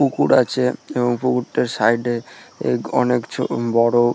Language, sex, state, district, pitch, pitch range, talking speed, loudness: Bengali, male, West Bengal, Purulia, 120 Hz, 115-125 Hz, 130 wpm, -19 LUFS